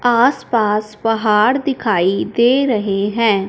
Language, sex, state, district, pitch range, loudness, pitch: Hindi, male, Punjab, Fazilka, 210-240 Hz, -16 LUFS, 225 Hz